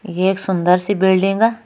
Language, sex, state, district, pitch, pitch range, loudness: Kumaoni, female, Uttarakhand, Tehri Garhwal, 190 Hz, 185-205 Hz, -16 LUFS